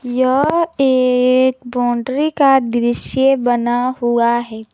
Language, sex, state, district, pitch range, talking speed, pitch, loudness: Hindi, female, Jharkhand, Garhwa, 240-265 Hz, 100 wpm, 250 Hz, -15 LUFS